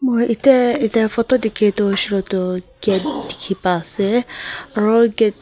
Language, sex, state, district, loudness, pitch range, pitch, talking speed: Nagamese, female, Nagaland, Kohima, -18 LUFS, 195-235 Hz, 215 Hz, 145 wpm